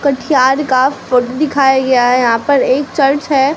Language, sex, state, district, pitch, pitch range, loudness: Hindi, female, Bihar, Katihar, 270 Hz, 255-280 Hz, -12 LUFS